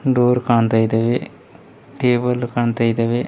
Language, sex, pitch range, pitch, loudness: Kannada, male, 115-125 Hz, 120 Hz, -18 LUFS